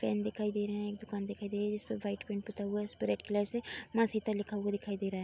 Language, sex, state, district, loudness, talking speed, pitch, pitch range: Hindi, female, Uttar Pradesh, Budaun, -36 LUFS, 345 wpm, 205 Hz, 200-210 Hz